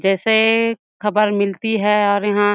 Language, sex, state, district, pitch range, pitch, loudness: Chhattisgarhi, female, Chhattisgarh, Jashpur, 205-220 Hz, 210 Hz, -17 LUFS